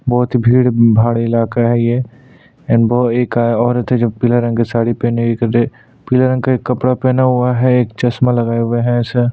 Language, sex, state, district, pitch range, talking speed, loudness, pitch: Hindi, male, Chhattisgarh, Sukma, 115-125 Hz, 195 wpm, -14 LUFS, 120 Hz